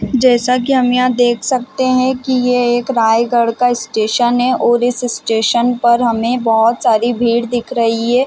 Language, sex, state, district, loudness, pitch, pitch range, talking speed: Hindi, female, Chhattisgarh, Raigarh, -14 LUFS, 240 Hz, 230-250 Hz, 190 wpm